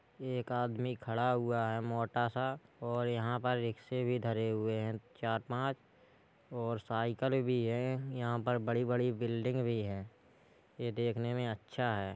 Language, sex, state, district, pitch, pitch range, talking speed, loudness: Hindi, male, Uttar Pradesh, Hamirpur, 120 Hz, 115-125 Hz, 160 wpm, -36 LUFS